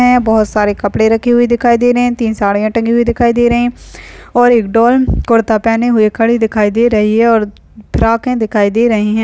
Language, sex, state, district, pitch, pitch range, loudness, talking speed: Hindi, female, West Bengal, Dakshin Dinajpur, 230 Hz, 220-240 Hz, -12 LUFS, 240 wpm